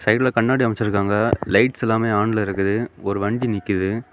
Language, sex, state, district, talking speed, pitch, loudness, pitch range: Tamil, male, Tamil Nadu, Kanyakumari, 145 wpm, 110 Hz, -20 LUFS, 100-115 Hz